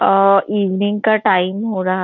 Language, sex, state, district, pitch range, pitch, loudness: Hindi, female, Maharashtra, Nagpur, 185-210 Hz, 195 Hz, -16 LUFS